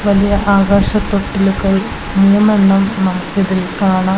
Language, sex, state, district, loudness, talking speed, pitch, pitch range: Malayalam, female, Kerala, Kozhikode, -13 LUFS, 70 wpm, 195 Hz, 195-200 Hz